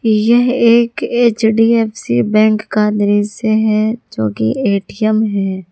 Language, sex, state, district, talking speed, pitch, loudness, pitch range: Hindi, female, Jharkhand, Ranchi, 115 wpm, 215 Hz, -14 LUFS, 205-230 Hz